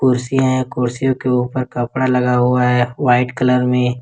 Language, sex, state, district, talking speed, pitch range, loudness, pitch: Hindi, male, Jharkhand, Ranchi, 180 wpm, 125-130 Hz, -16 LUFS, 125 Hz